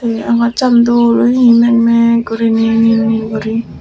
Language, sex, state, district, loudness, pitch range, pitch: Chakma, female, Tripura, Dhalai, -11 LUFS, 225-235 Hz, 230 Hz